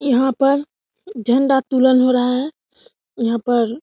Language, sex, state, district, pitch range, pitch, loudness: Hindi, female, Bihar, Samastipur, 245-275 Hz, 260 Hz, -17 LUFS